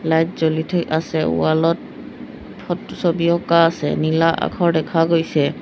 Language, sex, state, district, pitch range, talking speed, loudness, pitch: Assamese, female, Assam, Sonitpur, 160-170 Hz, 150 wpm, -18 LUFS, 165 Hz